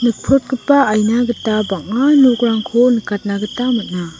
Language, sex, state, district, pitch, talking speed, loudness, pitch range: Garo, female, Meghalaya, West Garo Hills, 235 Hz, 115 wpm, -15 LUFS, 210-250 Hz